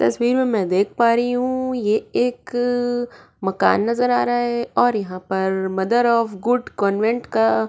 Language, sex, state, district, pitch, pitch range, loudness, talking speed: Hindi, female, Goa, North and South Goa, 235 Hz, 195-245 Hz, -20 LUFS, 170 wpm